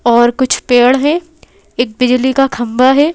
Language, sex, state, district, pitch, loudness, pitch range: Hindi, female, Madhya Pradesh, Bhopal, 255 Hz, -12 LUFS, 245-275 Hz